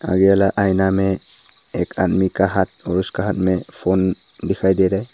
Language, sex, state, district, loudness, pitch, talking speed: Hindi, male, Arunachal Pradesh, Papum Pare, -19 LUFS, 95 Hz, 200 wpm